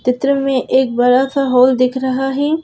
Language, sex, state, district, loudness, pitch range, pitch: Hindi, female, Madhya Pradesh, Bhopal, -14 LUFS, 255-275 Hz, 260 Hz